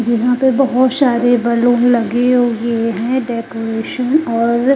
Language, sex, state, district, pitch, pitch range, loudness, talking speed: Hindi, female, Haryana, Charkhi Dadri, 240 Hz, 235-255 Hz, -14 LUFS, 125 wpm